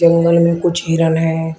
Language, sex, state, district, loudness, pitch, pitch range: Hindi, male, Uttar Pradesh, Shamli, -14 LUFS, 170 Hz, 160-170 Hz